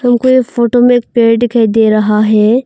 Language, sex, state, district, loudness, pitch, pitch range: Hindi, female, Arunachal Pradesh, Longding, -10 LUFS, 235 Hz, 220-245 Hz